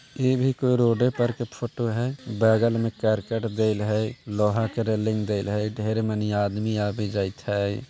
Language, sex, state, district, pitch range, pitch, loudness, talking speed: Magahi, male, Bihar, Jahanabad, 105-120 Hz, 110 Hz, -25 LUFS, 180 wpm